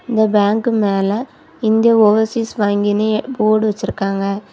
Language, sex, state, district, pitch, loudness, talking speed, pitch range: Tamil, female, Tamil Nadu, Kanyakumari, 215 Hz, -16 LUFS, 105 wpm, 205-225 Hz